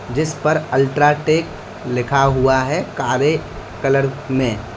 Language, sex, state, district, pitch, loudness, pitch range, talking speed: Hindi, male, Uttar Pradesh, Lalitpur, 135 Hz, -18 LUFS, 125-150 Hz, 115 wpm